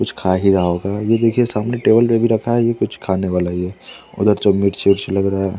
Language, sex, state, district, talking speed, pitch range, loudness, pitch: Hindi, male, Chandigarh, Chandigarh, 280 wpm, 95-115 Hz, -17 LUFS, 100 Hz